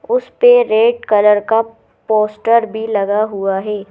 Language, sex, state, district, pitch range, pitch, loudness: Hindi, female, Madhya Pradesh, Bhopal, 210-230 Hz, 220 Hz, -14 LUFS